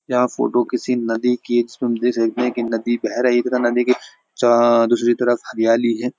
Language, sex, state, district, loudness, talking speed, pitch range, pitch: Hindi, male, Uttarakhand, Uttarkashi, -18 LUFS, 225 wpm, 115-125 Hz, 120 Hz